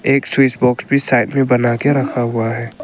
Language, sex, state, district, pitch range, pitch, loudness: Hindi, male, Arunachal Pradesh, Longding, 120-135 Hz, 125 Hz, -15 LUFS